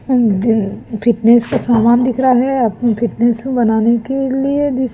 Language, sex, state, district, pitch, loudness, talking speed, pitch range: Hindi, female, Chhattisgarh, Raipur, 235 Hz, -14 LUFS, 135 wpm, 230-260 Hz